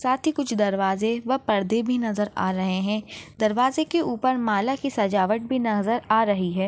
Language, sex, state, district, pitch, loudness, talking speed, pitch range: Hindi, female, Maharashtra, Chandrapur, 220 Hz, -24 LUFS, 200 wpm, 205-255 Hz